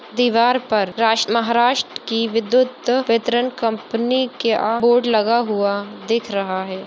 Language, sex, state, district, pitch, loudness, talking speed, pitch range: Hindi, male, Maharashtra, Dhule, 230 Hz, -18 LUFS, 130 wpm, 220-240 Hz